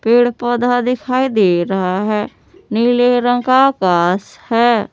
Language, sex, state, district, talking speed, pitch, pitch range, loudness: Hindi, female, Jharkhand, Palamu, 135 wpm, 240 Hz, 205-245 Hz, -15 LUFS